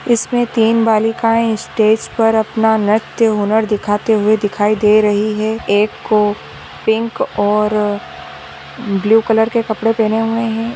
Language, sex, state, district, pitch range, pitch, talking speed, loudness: Hindi, female, Chhattisgarh, Raigarh, 210-225 Hz, 220 Hz, 140 wpm, -15 LUFS